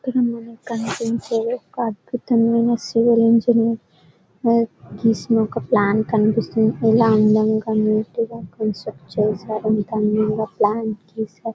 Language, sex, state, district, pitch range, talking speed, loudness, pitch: Telugu, female, Telangana, Karimnagar, 215-230 Hz, 110 wpm, -19 LUFS, 225 Hz